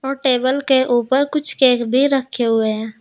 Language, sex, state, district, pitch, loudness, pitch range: Hindi, female, Uttar Pradesh, Saharanpur, 260 Hz, -16 LUFS, 240-275 Hz